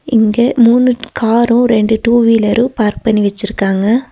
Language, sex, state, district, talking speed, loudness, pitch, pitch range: Tamil, female, Tamil Nadu, Nilgiris, 130 wpm, -12 LUFS, 230 Hz, 215-240 Hz